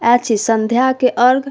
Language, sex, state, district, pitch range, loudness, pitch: Maithili, female, Bihar, Saharsa, 230-255 Hz, -14 LUFS, 245 Hz